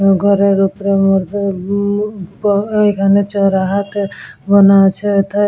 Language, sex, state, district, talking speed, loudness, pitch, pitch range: Bengali, female, West Bengal, Dakshin Dinajpur, 130 wpm, -14 LUFS, 200 Hz, 195-200 Hz